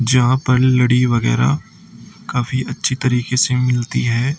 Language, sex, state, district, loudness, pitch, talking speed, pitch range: Hindi, male, Uttar Pradesh, Shamli, -17 LUFS, 125 Hz, 135 wpm, 120-130 Hz